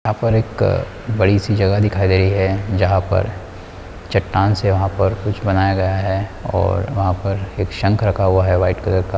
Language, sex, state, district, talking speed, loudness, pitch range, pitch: Hindi, male, Chhattisgarh, Korba, 205 wpm, -18 LUFS, 95-100 Hz, 95 Hz